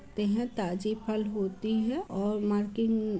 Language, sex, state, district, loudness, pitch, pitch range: Hindi, female, Bihar, Muzaffarpur, -31 LUFS, 215 Hz, 205-220 Hz